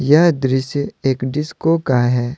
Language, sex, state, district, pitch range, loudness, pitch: Hindi, male, Jharkhand, Deoghar, 130-150 Hz, -17 LUFS, 135 Hz